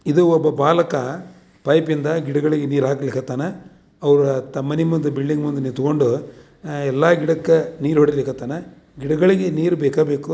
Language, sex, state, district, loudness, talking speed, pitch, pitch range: Kannada, male, Karnataka, Dharwad, -19 LUFS, 145 wpm, 150 Hz, 140-165 Hz